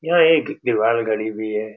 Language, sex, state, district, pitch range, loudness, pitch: Hindi, male, Bihar, Saran, 110-155 Hz, -19 LUFS, 110 Hz